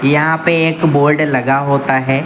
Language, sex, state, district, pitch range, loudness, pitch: Hindi, male, Uttar Pradesh, Lucknow, 135-160 Hz, -13 LUFS, 145 Hz